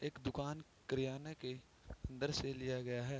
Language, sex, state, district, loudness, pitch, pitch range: Hindi, male, Bihar, Sitamarhi, -44 LUFS, 135 Hz, 130-145 Hz